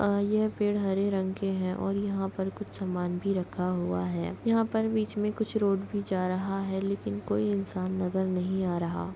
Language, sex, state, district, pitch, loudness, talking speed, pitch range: Hindi, female, Chhattisgarh, Kabirdham, 195 Hz, -30 LUFS, 210 wpm, 185-205 Hz